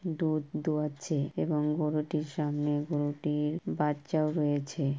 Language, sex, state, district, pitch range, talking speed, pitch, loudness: Bengali, female, West Bengal, Purulia, 145-155 Hz, 110 wpm, 150 Hz, -31 LUFS